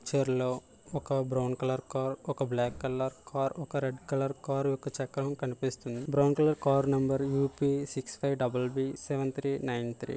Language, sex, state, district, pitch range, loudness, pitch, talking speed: Telugu, male, Andhra Pradesh, Visakhapatnam, 130-140 Hz, -32 LUFS, 135 Hz, 190 wpm